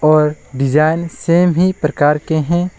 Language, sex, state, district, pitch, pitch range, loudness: Hindi, male, West Bengal, Alipurduar, 155 Hz, 150-170 Hz, -15 LUFS